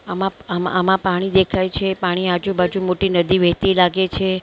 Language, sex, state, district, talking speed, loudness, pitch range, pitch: Gujarati, female, Maharashtra, Mumbai Suburban, 205 wpm, -18 LUFS, 180-190 Hz, 185 Hz